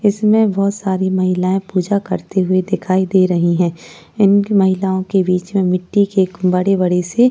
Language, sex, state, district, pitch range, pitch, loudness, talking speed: Hindi, female, Uttar Pradesh, Jyotiba Phule Nagar, 185-200 Hz, 190 Hz, -16 LUFS, 170 wpm